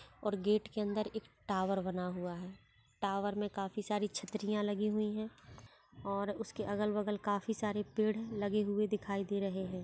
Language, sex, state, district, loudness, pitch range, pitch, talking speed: Hindi, female, Bihar, Bhagalpur, -37 LUFS, 200-210 Hz, 205 Hz, 170 wpm